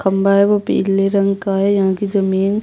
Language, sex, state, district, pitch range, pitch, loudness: Hindi, female, Chhattisgarh, Jashpur, 195-200 Hz, 195 Hz, -16 LUFS